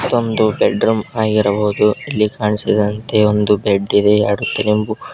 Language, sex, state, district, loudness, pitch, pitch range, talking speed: Kannada, male, Karnataka, Koppal, -16 LUFS, 105 Hz, 105-110 Hz, 115 wpm